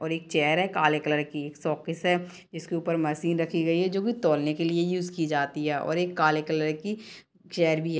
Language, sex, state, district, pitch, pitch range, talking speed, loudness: Hindi, female, Chhattisgarh, Bilaspur, 165 Hz, 155-180 Hz, 255 wpm, -27 LUFS